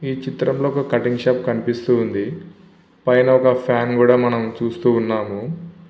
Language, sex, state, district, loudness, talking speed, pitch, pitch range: Telugu, male, Andhra Pradesh, Visakhapatnam, -18 LUFS, 140 wpm, 125 Hz, 120-135 Hz